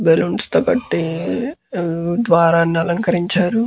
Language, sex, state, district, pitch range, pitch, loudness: Telugu, male, Andhra Pradesh, Guntur, 165-235 Hz, 175 Hz, -17 LUFS